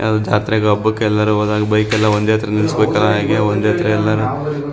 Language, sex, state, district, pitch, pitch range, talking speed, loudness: Kannada, male, Karnataka, Shimoga, 105 Hz, 105-110 Hz, 150 wpm, -15 LUFS